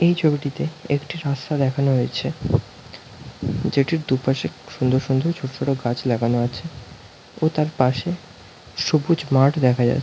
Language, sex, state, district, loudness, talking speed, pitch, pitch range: Bengali, male, West Bengal, North 24 Parganas, -22 LUFS, 130 wpm, 135 Hz, 125-155 Hz